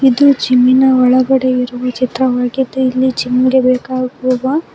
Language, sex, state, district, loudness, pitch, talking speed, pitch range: Kannada, female, Karnataka, Bangalore, -13 LUFS, 255 Hz, 115 wpm, 250-260 Hz